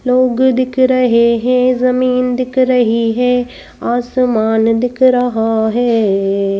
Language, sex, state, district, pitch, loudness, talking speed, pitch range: Hindi, female, Madhya Pradesh, Bhopal, 245 Hz, -13 LUFS, 110 wpm, 230-255 Hz